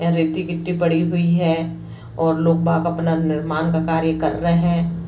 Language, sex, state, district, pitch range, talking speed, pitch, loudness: Hindi, female, Chhattisgarh, Bastar, 160-170 Hz, 190 wpm, 165 Hz, -19 LUFS